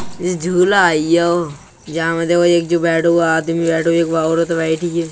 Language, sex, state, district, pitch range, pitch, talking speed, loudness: Bundeli, male, Uttar Pradesh, Budaun, 165-175 Hz, 170 Hz, 165 wpm, -15 LUFS